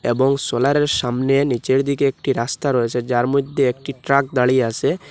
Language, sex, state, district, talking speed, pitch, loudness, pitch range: Bengali, male, Assam, Hailakandi, 165 wpm, 135 Hz, -19 LUFS, 125-140 Hz